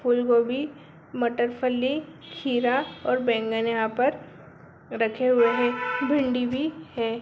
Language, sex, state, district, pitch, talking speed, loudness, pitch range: Hindi, female, Bihar, Begusarai, 245 Hz, 125 wpm, -25 LUFS, 235-260 Hz